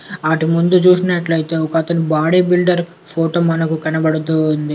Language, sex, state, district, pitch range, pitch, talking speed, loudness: Telugu, male, Telangana, Komaram Bheem, 160-180 Hz, 165 Hz, 150 wpm, -15 LUFS